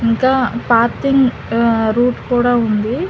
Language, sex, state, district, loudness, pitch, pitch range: Telugu, female, Telangana, Hyderabad, -15 LUFS, 240 Hz, 230-250 Hz